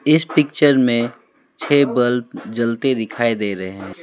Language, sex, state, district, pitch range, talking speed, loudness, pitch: Hindi, male, West Bengal, Alipurduar, 115-140 Hz, 150 wpm, -18 LUFS, 120 Hz